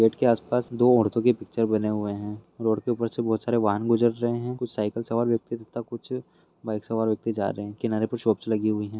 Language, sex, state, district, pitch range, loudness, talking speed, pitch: Hindi, male, Bihar, Jamui, 110-120 Hz, -26 LUFS, 255 wpm, 115 Hz